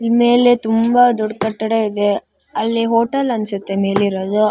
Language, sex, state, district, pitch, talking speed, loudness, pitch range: Kannada, female, Karnataka, Shimoga, 220 Hz, 120 wpm, -16 LUFS, 205-235 Hz